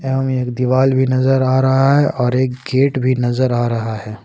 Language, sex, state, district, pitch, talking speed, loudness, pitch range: Hindi, male, Jharkhand, Ranchi, 130 Hz, 210 wpm, -16 LUFS, 125-130 Hz